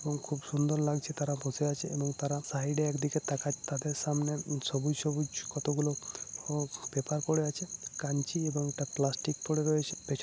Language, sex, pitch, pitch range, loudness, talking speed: Odia, male, 145 Hz, 145-150 Hz, -33 LUFS, 180 wpm